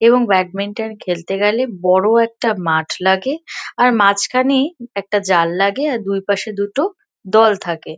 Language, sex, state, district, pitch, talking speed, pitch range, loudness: Bengali, female, West Bengal, Kolkata, 205 Hz, 135 wpm, 190-240 Hz, -16 LUFS